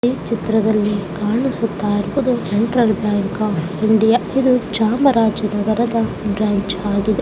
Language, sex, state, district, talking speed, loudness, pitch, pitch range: Kannada, female, Karnataka, Chamarajanagar, 110 wpm, -18 LUFS, 215 Hz, 205-230 Hz